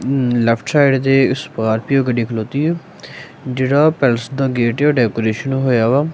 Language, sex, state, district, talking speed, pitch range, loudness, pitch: Punjabi, male, Punjab, Kapurthala, 135 wpm, 115-140 Hz, -16 LUFS, 130 Hz